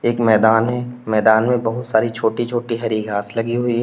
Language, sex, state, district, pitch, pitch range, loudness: Hindi, male, Uttar Pradesh, Lalitpur, 115 Hz, 110-120 Hz, -18 LUFS